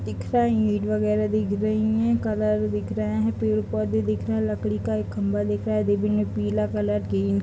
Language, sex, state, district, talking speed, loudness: Hindi, female, Bihar, Bhagalpur, 225 wpm, -24 LUFS